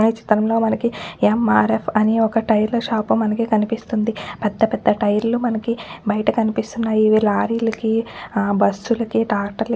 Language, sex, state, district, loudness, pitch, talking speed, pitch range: Telugu, female, Telangana, Nalgonda, -19 LUFS, 220 Hz, 180 wpm, 210-225 Hz